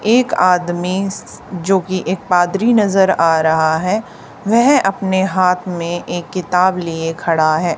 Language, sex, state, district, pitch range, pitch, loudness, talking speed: Hindi, female, Haryana, Charkhi Dadri, 170-195 Hz, 180 Hz, -15 LUFS, 140 wpm